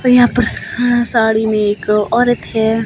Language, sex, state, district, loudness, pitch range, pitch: Hindi, female, Himachal Pradesh, Shimla, -14 LUFS, 220-245 Hz, 230 Hz